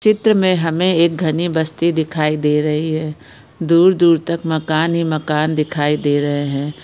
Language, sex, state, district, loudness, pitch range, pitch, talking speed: Hindi, female, Bihar, Darbhanga, -16 LUFS, 150-170 Hz, 160 Hz, 165 wpm